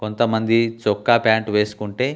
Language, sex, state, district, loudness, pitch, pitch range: Telugu, male, Telangana, Hyderabad, -19 LUFS, 110 Hz, 105-115 Hz